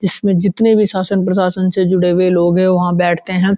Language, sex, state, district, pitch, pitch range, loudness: Hindi, male, Uttarakhand, Uttarkashi, 185 Hz, 180-195 Hz, -14 LUFS